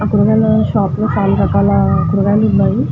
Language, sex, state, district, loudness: Telugu, female, Andhra Pradesh, Guntur, -13 LUFS